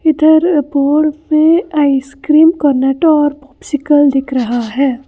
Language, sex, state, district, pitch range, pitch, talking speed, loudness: Hindi, female, Karnataka, Bangalore, 270-315 Hz, 290 Hz, 120 wpm, -12 LUFS